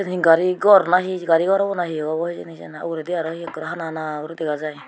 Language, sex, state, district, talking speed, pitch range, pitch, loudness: Chakma, female, Tripura, Unakoti, 245 wpm, 155-180 Hz, 165 Hz, -20 LUFS